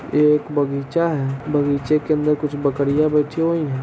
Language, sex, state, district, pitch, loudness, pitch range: Hindi, male, Bihar, Sitamarhi, 150 Hz, -19 LUFS, 140-155 Hz